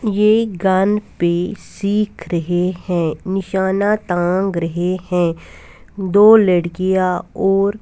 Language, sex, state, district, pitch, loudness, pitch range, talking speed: Hindi, female, Punjab, Fazilka, 190 Hz, -17 LUFS, 175-200 Hz, 100 wpm